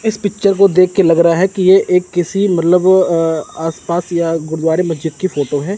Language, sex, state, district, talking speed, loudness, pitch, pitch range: Hindi, male, Chandigarh, Chandigarh, 205 wpm, -13 LUFS, 180 Hz, 165-190 Hz